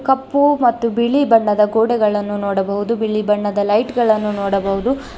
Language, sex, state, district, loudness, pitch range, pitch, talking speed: Kannada, female, Karnataka, Bangalore, -16 LUFS, 205-240 Hz, 215 Hz, 125 wpm